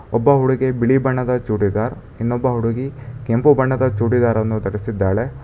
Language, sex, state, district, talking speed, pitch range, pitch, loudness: Kannada, male, Karnataka, Bangalore, 130 wpm, 110-130 Hz, 120 Hz, -18 LUFS